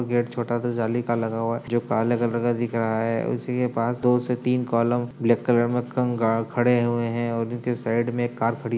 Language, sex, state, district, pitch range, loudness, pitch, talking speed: Hindi, male, Uttar Pradesh, Jyotiba Phule Nagar, 115-120 Hz, -24 LUFS, 120 Hz, 240 wpm